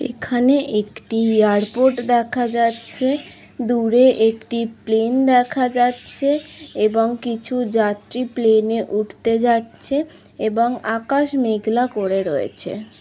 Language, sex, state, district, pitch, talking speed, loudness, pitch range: Bengali, female, West Bengal, Kolkata, 235 Hz, 95 wpm, -19 LUFS, 220-250 Hz